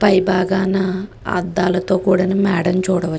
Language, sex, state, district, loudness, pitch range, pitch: Telugu, female, Andhra Pradesh, Guntur, -17 LUFS, 180-190 Hz, 185 Hz